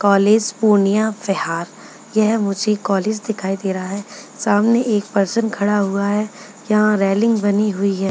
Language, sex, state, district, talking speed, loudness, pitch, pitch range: Hindi, female, Bihar, Purnia, 155 wpm, -18 LUFS, 205 Hz, 195-215 Hz